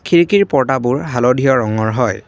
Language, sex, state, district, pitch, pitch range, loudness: Assamese, male, Assam, Kamrup Metropolitan, 130 Hz, 120-150 Hz, -14 LUFS